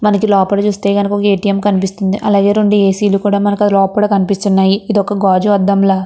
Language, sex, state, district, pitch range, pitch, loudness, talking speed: Telugu, female, Andhra Pradesh, Anantapur, 195-205 Hz, 200 Hz, -12 LUFS, 210 wpm